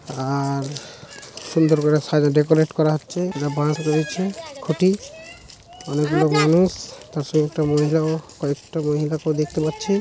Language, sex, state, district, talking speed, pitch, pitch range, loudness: Bengali, male, West Bengal, Malda, 125 wpm, 155 Hz, 150-160 Hz, -21 LUFS